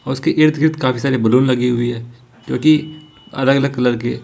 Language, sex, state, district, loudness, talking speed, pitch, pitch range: Hindi, male, Jharkhand, Ranchi, -16 LUFS, 225 wpm, 130 Hz, 120-150 Hz